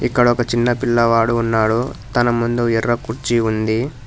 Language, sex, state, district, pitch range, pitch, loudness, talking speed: Telugu, male, Telangana, Hyderabad, 115-120 Hz, 120 Hz, -17 LUFS, 145 wpm